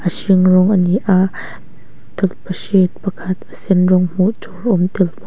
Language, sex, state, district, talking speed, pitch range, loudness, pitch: Mizo, female, Mizoram, Aizawl, 170 wpm, 180-190 Hz, -15 LUFS, 185 Hz